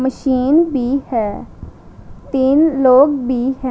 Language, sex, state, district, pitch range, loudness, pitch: Hindi, female, Punjab, Pathankot, 255-275 Hz, -15 LUFS, 265 Hz